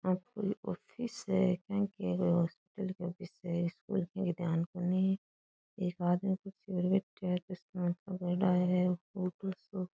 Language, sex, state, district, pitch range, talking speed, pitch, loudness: Rajasthani, female, Rajasthan, Churu, 180-190 Hz, 145 wpm, 185 Hz, -35 LUFS